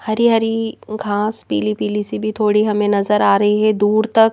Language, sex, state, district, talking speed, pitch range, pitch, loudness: Hindi, female, Madhya Pradesh, Bhopal, 210 wpm, 205-220 Hz, 210 Hz, -17 LUFS